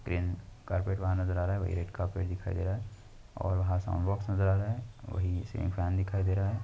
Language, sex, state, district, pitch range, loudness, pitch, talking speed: Hindi, male, Uttar Pradesh, Muzaffarnagar, 90-100 Hz, -33 LUFS, 95 Hz, 235 wpm